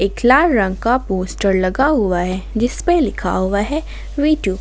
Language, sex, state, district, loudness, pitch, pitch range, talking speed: Hindi, female, Jharkhand, Ranchi, -17 LUFS, 210 Hz, 190-280 Hz, 195 wpm